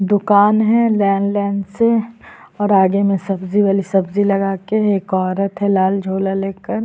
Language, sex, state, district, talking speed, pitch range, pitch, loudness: Hindi, female, Chhattisgarh, Sukma, 165 wpm, 195-205 Hz, 200 Hz, -16 LUFS